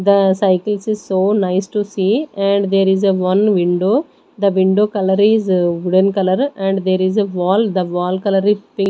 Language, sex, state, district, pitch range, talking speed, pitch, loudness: English, female, Maharashtra, Gondia, 185-205 Hz, 195 wpm, 195 Hz, -16 LUFS